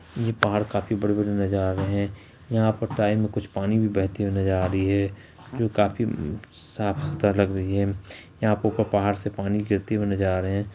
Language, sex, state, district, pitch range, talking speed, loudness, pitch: Hindi, male, Bihar, Saharsa, 100-110 Hz, 220 wpm, -25 LUFS, 100 Hz